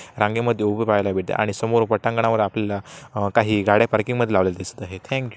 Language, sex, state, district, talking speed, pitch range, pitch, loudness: Marathi, male, Maharashtra, Sindhudurg, 190 wpm, 100-115 Hz, 110 Hz, -21 LUFS